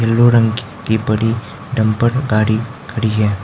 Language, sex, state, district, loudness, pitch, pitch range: Hindi, male, Arunachal Pradesh, Lower Dibang Valley, -16 LUFS, 115 Hz, 110-115 Hz